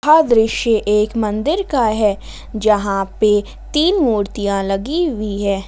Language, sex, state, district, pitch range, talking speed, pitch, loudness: Hindi, female, Jharkhand, Ranchi, 205-260 Hz, 135 wpm, 215 Hz, -16 LUFS